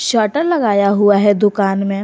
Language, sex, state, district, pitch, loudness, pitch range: Hindi, female, Jharkhand, Garhwa, 205 Hz, -14 LUFS, 200-220 Hz